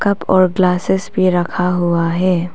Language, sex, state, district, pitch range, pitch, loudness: Hindi, female, Arunachal Pradesh, Papum Pare, 175-185 Hz, 180 Hz, -15 LUFS